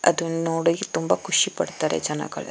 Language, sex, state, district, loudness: Kannada, female, Karnataka, Chamarajanagar, -23 LUFS